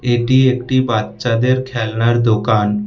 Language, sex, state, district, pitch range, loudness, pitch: Bengali, male, West Bengal, Alipurduar, 110-130 Hz, -15 LUFS, 120 Hz